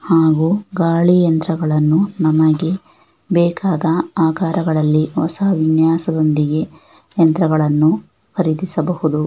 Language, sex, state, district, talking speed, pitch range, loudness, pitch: Kannada, female, Karnataka, Shimoga, 65 wpm, 155-170 Hz, -16 LUFS, 160 Hz